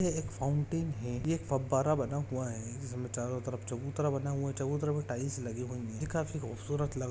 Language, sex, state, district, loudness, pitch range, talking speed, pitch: Hindi, male, Jharkhand, Jamtara, -35 LUFS, 125-145 Hz, 230 wpm, 135 Hz